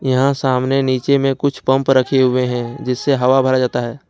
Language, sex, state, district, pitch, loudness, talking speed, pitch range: Hindi, male, Jharkhand, Ranchi, 130 Hz, -16 LUFS, 205 wpm, 125-135 Hz